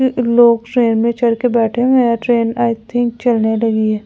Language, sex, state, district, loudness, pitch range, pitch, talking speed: Hindi, female, Delhi, New Delhi, -14 LUFS, 230-240 Hz, 235 Hz, 220 wpm